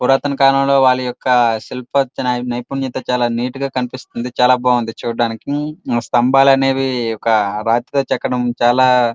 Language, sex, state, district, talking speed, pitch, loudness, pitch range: Telugu, male, Andhra Pradesh, Srikakulam, 130 wpm, 125 Hz, -16 LUFS, 120-135 Hz